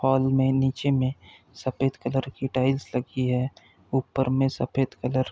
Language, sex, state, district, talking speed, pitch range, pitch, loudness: Hindi, male, Uttar Pradesh, Deoria, 170 wpm, 130-135 Hz, 130 Hz, -26 LUFS